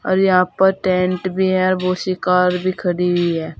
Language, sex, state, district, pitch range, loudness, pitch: Hindi, female, Uttar Pradesh, Saharanpur, 180-185 Hz, -17 LUFS, 185 Hz